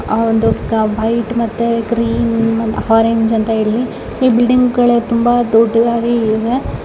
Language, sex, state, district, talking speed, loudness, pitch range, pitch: Kannada, female, Karnataka, Raichur, 115 wpm, -14 LUFS, 225-235 Hz, 230 Hz